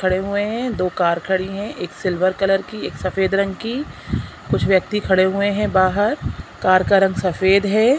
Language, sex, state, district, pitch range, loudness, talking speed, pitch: Hindi, female, Chhattisgarh, Sukma, 185-205 Hz, -19 LUFS, 195 wpm, 190 Hz